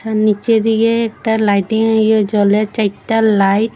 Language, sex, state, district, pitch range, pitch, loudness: Bengali, female, Assam, Hailakandi, 210-225 Hz, 220 Hz, -14 LUFS